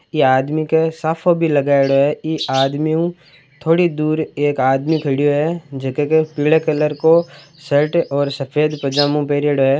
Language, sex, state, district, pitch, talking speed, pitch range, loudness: Marwari, male, Rajasthan, Churu, 150 Hz, 165 wpm, 140-160 Hz, -17 LUFS